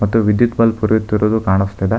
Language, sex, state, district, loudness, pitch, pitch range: Kannada, male, Karnataka, Bangalore, -15 LUFS, 110 Hz, 105-115 Hz